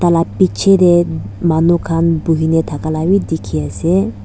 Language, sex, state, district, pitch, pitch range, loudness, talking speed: Nagamese, female, Nagaland, Dimapur, 165 Hz, 155-175 Hz, -14 LUFS, 170 wpm